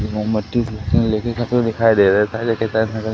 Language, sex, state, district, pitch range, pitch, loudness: Hindi, male, Madhya Pradesh, Katni, 105-115 Hz, 110 Hz, -18 LUFS